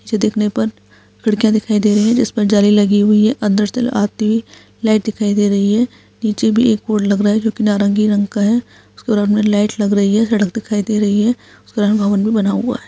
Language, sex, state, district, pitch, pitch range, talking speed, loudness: Hindi, female, Bihar, Saharsa, 210 Hz, 205-220 Hz, 245 wpm, -15 LUFS